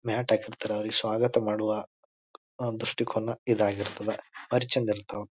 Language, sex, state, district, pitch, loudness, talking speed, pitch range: Kannada, male, Karnataka, Bijapur, 110 Hz, -29 LUFS, 135 wpm, 105-115 Hz